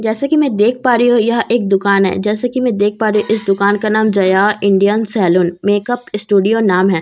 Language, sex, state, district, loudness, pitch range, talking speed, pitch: Hindi, female, Bihar, Katihar, -13 LUFS, 200-230 Hz, 280 wpm, 210 Hz